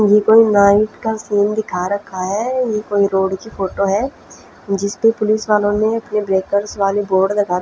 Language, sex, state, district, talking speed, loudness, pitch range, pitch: Hindi, female, Punjab, Fazilka, 195 wpm, -16 LUFS, 195-215 Hz, 205 Hz